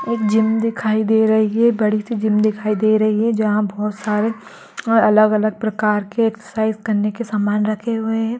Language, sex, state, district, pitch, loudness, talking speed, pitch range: Magahi, female, Bihar, Gaya, 215 Hz, -18 LUFS, 215 wpm, 215-225 Hz